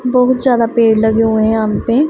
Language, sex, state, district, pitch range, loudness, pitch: Hindi, female, Punjab, Pathankot, 220-250 Hz, -13 LUFS, 230 Hz